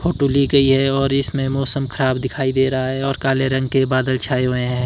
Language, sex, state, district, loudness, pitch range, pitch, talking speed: Hindi, male, Himachal Pradesh, Shimla, -18 LUFS, 130-135 Hz, 135 Hz, 245 wpm